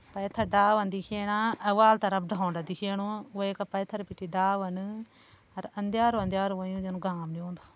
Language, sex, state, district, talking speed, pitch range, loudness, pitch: Garhwali, female, Uttarakhand, Uttarkashi, 160 wpm, 190-210 Hz, -29 LUFS, 200 Hz